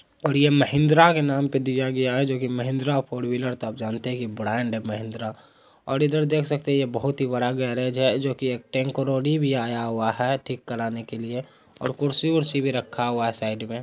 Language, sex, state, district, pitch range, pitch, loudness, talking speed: Hindi, male, Bihar, Araria, 120-140 Hz, 130 Hz, -24 LUFS, 225 wpm